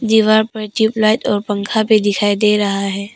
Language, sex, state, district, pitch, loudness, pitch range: Hindi, female, Arunachal Pradesh, Papum Pare, 215 Hz, -15 LUFS, 205-220 Hz